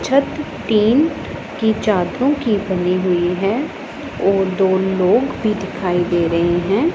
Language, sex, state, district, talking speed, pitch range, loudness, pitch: Hindi, female, Punjab, Pathankot, 140 wpm, 180-255 Hz, -17 LUFS, 195 Hz